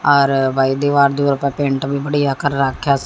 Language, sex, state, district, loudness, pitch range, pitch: Hindi, female, Haryana, Jhajjar, -16 LUFS, 135-140 Hz, 140 Hz